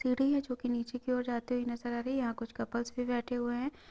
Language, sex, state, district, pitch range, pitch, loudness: Hindi, female, Chhattisgarh, Raigarh, 240-255 Hz, 245 Hz, -35 LUFS